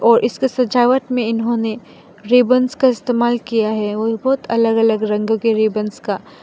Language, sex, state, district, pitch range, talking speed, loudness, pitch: Hindi, female, Mizoram, Aizawl, 220-250 Hz, 175 wpm, -17 LUFS, 230 Hz